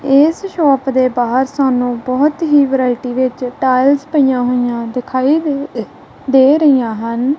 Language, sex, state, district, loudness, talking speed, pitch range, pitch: Punjabi, female, Punjab, Kapurthala, -14 LUFS, 140 wpm, 250-285 Hz, 265 Hz